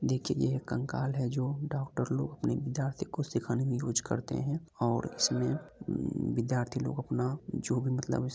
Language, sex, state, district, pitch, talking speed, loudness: Angika, male, Bihar, Begusarai, 125 Hz, 170 wpm, -33 LUFS